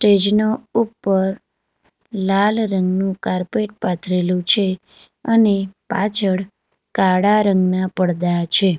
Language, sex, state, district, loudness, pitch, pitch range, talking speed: Gujarati, female, Gujarat, Valsad, -18 LUFS, 195 Hz, 185-210 Hz, 80 wpm